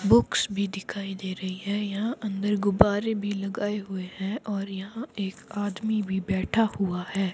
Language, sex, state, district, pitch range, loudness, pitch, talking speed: Hindi, male, Himachal Pradesh, Shimla, 195-210 Hz, -28 LUFS, 200 Hz, 170 wpm